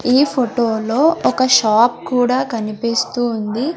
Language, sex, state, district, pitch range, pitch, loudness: Telugu, female, Andhra Pradesh, Sri Satya Sai, 230-260 Hz, 245 Hz, -16 LUFS